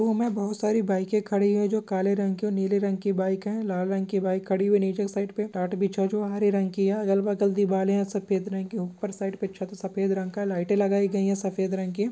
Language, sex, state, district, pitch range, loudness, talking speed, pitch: Hindi, male, Maharashtra, Chandrapur, 190-205 Hz, -26 LUFS, 290 wpm, 200 Hz